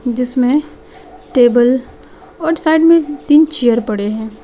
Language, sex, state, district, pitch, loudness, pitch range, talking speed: Hindi, female, West Bengal, Alipurduar, 255 Hz, -13 LUFS, 240-315 Hz, 120 wpm